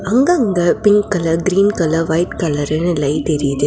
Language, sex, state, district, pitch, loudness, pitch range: Tamil, female, Tamil Nadu, Nilgiris, 170 Hz, -15 LUFS, 155-200 Hz